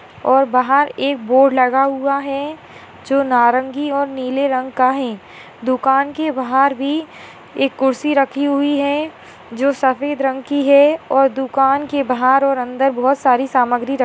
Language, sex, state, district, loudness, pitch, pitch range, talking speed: Hindi, female, Chhattisgarh, Rajnandgaon, -16 LUFS, 270 Hz, 260-280 Hz, 160 wpm